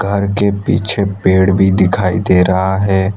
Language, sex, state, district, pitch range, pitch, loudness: Hindi, male, Gujarat, Valsad, 95-100 Hz, 95 Hz, -13 LUFS